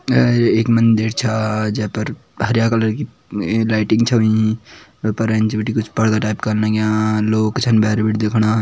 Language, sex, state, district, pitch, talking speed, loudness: Kumaoni, male, Uttarakhand, Tehri Garhwal, 110 Hz, 180 wpm, -17 LUFS